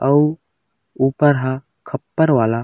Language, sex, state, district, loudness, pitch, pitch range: Chhattisgarhi, male, Chhattisgarh, Raigarh, -18 LUFS, 140 Hz, 130-150 Hz